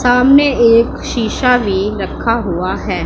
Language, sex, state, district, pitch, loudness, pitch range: Hindi, female, Punjab, Pathankot, 230 Hz, -13 LUFS, 205-250 Hz